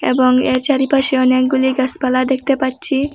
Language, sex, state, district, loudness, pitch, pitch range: Bengali, female, Assam, Hailakandi, -15 LUFS, 260 Hz, 255-275 Hz